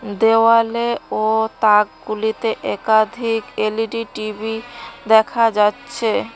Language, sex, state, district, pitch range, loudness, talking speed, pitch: Bengali, female, West Bengal, Cooch Behar, 215-230 Hz, -18 LUFS, 75 wpm, 220 Hz